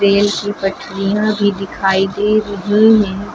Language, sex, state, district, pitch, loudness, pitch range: Hindi, female, Uttar Pradesh, Lucknow, 205 Hz, -15 LUFS, 195-210 Hz